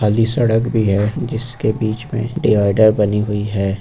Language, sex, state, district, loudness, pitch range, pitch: Hindi, male, Uttar Pradesh, Lucknow, -17 LUFS, 105-115 Hz, 110 Hz